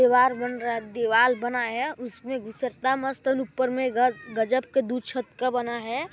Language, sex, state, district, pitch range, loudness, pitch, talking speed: Hindi, male, Chhattisgarh, Balrampur, 235-260 Hz, -26 LUFS, 250 Hz, 185 wpm